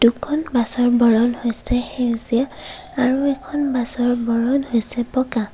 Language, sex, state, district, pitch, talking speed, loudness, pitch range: Assamese, female, Assam, Kamrup Metropolitan, 245 Hz, 140 wpm, -19 LUFS, 235-265 Hz